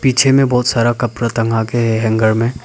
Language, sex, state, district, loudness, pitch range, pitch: Hindi, male, Arunachal Pradesh, Papum Pare, -14 LUFS, 115-125 Hz, 120 Hz